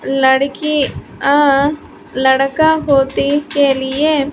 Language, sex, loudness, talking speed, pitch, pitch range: Hindi, female, -14 LUFS, 85 wpm, 280 Hz, 270-295 Hz